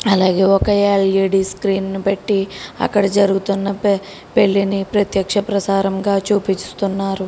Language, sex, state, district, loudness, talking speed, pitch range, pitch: Telugu, female, Telangana, Karimnagar, -17 LUFS, 115 wpm, 195-200 Hz, 195 Hz